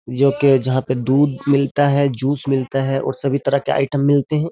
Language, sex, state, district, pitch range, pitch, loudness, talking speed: Hindi, male, Uttar Pradesh, Jyotiba Phule Nagar, 135-140 Hz, 140 Hz, -17 LUFS, 210 wpm